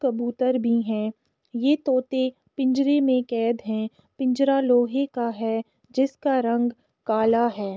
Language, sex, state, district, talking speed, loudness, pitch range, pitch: Hindi, female, Uttar Pradesh, Etah, 130 wpm, -24 LUFS, 230-265 Hz, 245 Hz